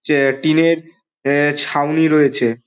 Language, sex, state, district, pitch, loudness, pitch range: Bengali, male, West Bengal, Dakshin Dinajpur, 145 Hz, -16 LUFS, 140-160 Hz